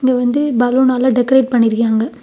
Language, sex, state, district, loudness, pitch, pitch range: Tamil, female, Tamil Nadu, Kanyakumari, -14 LUFS, 245 Hz, 240-260 Hz